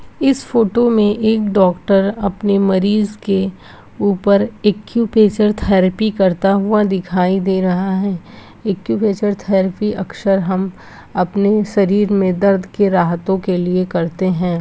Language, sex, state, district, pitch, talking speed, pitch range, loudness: Hindi, female, Bihar, Gopalganj, 195 Hz, 125 wpm, 185-210 Hz, -16 LUFS